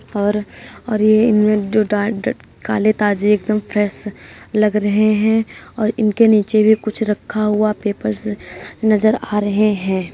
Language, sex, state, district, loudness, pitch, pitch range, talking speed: Hindi, female, Uttar Pradesh, Jyotiba Phule Nagar, -17 LUFS, 210 Hz, 205-215 Hz, 155 wpm